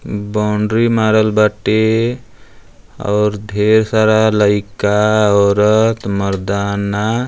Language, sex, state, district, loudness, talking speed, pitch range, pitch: Bhojpuri, male, Uttar Pradesh, Deoria, -14 LUFS, 80 wpm, 105-110 Hz, 105 Hz